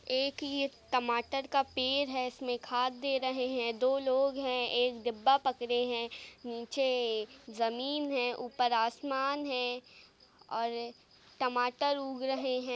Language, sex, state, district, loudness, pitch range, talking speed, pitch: Hindi, female, Uttar Pradesh, Jalaun, -33 LUFS, 240-270 Hz, 140 wpm, 255 Hz